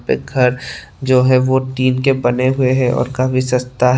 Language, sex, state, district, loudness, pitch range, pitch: Hindi, male, Tripura, West Tripura, -15 LUFS, 125-130 Hz, 130 Hz